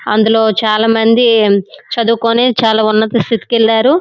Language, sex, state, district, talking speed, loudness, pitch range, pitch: Telugu, female, Andhra Pradesh, Srikakulam, 105 wpm, -11 LUFS, 220-230 Hz, 225 Hz